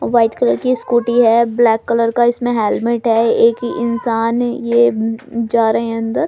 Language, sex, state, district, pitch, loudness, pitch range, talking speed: Hindi, female, Delhi, New Delhi, 235 Hz, -15 LUFS, 230-240 Hz, 170 wpm